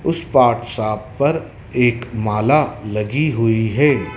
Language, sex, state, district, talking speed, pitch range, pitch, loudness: Hindi, male, Madhya Pradesh, Dhar, 115 wpm, 110-145 Hz, 120 Hz, -18 LUFS